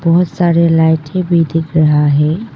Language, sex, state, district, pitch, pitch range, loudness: Hindi, female, Arunachal Pradesh, Papum Pare, 165 Hz, 155-175 Hz, -12 LUFS